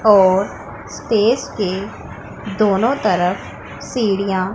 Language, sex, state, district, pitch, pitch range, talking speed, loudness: Hindi, female, Punjab, Pathankot, 200 Hz, 195-220 Hz, 90 wpm, -17 LUFS